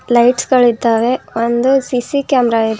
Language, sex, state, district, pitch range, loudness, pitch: Kannada, female, Karnataka, Bangalore, 230-255 Hz, -14 LUFS, 245 Hz